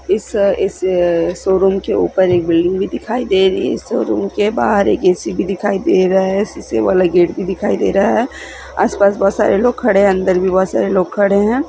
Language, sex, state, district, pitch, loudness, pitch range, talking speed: Maithili, female, Bihar, Begusarai, 195 Hz, -15 LUFS, 185-210 Hz, 210 wpm